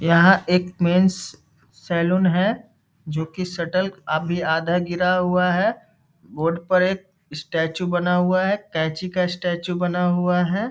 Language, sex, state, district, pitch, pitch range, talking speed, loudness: Hindi, male, Bihar, Muzaffarpur, 180 Hz, 165-185 Hz, 150 wpm, -21 LUFS